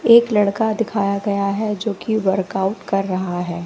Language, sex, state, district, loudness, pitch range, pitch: Hindi, female, Bihar, West Champaran, -19 LUFS, 190-220 Hz, 200 Hz